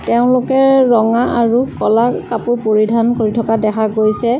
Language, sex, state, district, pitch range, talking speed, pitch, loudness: Assamese, female, Assam, Sonitpur, 220-245 Hz, 135 wpm, 230 Hz, -14 LUFS